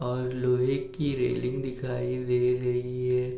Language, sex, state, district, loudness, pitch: Hindi, male, Uttar Pradesh, Etah, -28 LUFS, 125 Hz